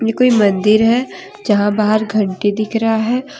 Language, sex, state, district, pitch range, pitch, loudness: Hindi, female, Jharkhand, Deoghar, 210-245 Hz, 220 Hz, -15 LUFS